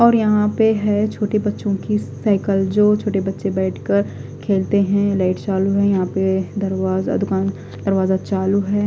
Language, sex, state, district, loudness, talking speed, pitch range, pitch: Hindi, female, Odisha, Khordha, -19 LUFS, 160 wpm, 190-210 Hz, 195 Hz